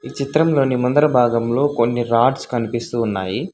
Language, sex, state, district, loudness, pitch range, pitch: Telugu, male, Telangana, Hyderabad, -18 LUFS, 115-140 Hz, 120 Hz